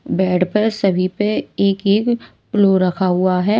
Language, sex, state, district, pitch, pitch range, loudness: Hindi, female, Maharashtra, Washim, 195 Hz, 185-210 Hz, -17 LUFS